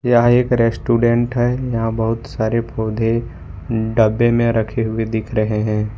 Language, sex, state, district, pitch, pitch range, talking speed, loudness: Hindi, male, Jharkhand, Ranchi, 115 Hz, 110-120 Hz, 150 wpm, -18 LUFS